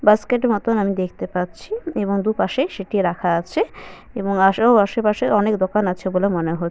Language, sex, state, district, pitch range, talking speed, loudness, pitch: Bengali, female, West Bengal, Malda, 185-220 Hz, 190 wpm, -20 LUFS, 200 Hz